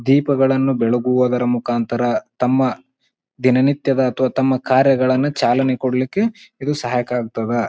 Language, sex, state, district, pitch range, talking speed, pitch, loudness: Kannada, male, Karnataka, Bijapur, 125-135 Hz, 95 wpm, 130 Hz, -18 LUFS